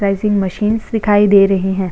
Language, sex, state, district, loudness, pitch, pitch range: Hindi, female, Maharashtra, Chandrapur, -14 LUFS, 200 Hz, 195-210 Hz